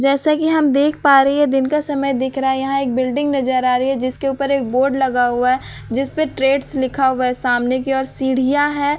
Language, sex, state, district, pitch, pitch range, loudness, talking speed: Hindi, female, Bihar, Katihar, 270 Hz, 260-280 Hz, -17 LUFS, 255 wpm